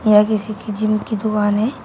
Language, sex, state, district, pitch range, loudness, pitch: Hindi, female, Uttar Pradesh, Shamli, 210-215 Hz, -18 LUFS, 215 Hz